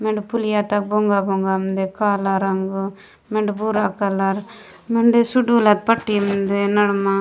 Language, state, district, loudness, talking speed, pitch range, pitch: Gondi, Chhattisgarh, Sukma, -19 LUFS, 140 wpm, 195-215 Hz, 205 Hz